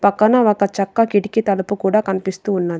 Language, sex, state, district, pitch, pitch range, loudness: Telugu, female, Telangana, Adilabad, 200 Hz, 195-215 Hz, -17 LUFS